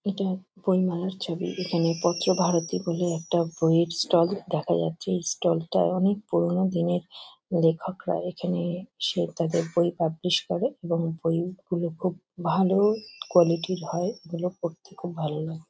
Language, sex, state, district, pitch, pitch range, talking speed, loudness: Bengali, female, West Bengal, Kolkata, 175 Hz, 170-185 Hz, 140 wpm, -26 LUFS